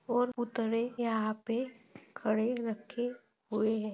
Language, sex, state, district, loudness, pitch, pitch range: Hindi, female, Maharashtra, Nagpur, -34 LUFS, 230 Hz, 220-240 Hz